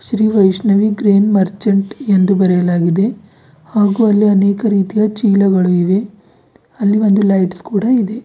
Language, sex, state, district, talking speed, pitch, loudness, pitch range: Kannada, female, Karnataka, Bidar, 125 wpm, 200 Hz, -13 LUFS, 190-210 Hz